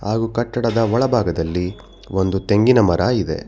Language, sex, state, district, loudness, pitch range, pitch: Kannada, male, Karnataka, Bangalore, -18 LUFS, 95-115 Hz, 105 Hz